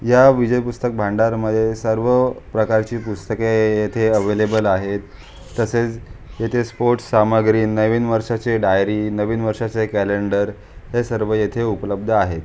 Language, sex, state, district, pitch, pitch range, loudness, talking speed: Marathi, male, Maharashtra, Aurangabad, 110 Hz, 105-115 Hz, -19 LUFS, 125 wpm